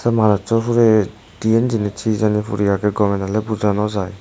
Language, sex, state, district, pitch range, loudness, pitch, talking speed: Chakma, male, Tripura, West Tripura, 100-110 Hz, -18 LUFS, 105 Hz, 185 wpm